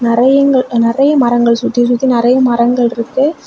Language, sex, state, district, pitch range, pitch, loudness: Tamil, female, Tamil Nadu, Kanyakumari, 235-265 Hz, 245 Hz, -11 LUFS